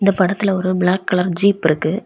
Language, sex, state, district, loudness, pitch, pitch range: Tamil, female, Tamil Nadu, Kanyakumari, -17 LUFS, 185 Hz, 180-200 Hz